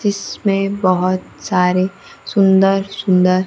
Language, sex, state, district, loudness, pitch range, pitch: Hindi, female, Bihar, Kaimur, -16 LUFS, 185-195 Hz, 195 Hz